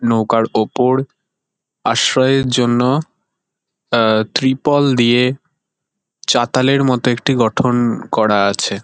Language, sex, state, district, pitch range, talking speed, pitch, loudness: Bengali, male, West Bengal, Kolkata, 115-135 Hz, 90 wpm, 125 Hz, -15 LUFS